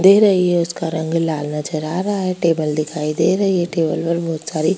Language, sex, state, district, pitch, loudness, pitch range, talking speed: Hindi, female, Bihar, Kishanganj, 165 Hz, -18 LUFS, 155-185 Hz, 250 wpm